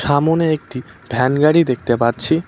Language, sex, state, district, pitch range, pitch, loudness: Bengali, male, West Bengal, Cooch Behar, 120-160 Hz, 145 Hz, -16 LUFS